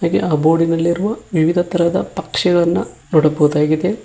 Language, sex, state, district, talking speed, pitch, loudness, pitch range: Kannada, male, Karnataka, Koppal, 105 wpm, 170 Hz, -16 LUFS, 155-175 Hz